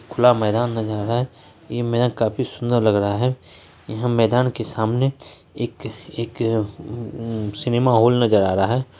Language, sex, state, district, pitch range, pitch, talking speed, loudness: Hindi, male, Bihar, Saharsa, 110-120 Hz, 115 Hz, 165 wpm, -21 LUFS